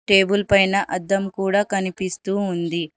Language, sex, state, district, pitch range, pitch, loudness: Telugu, male, Telangana, Hyderabad, 185-200 Hz, 195 Hz, -20 LUFS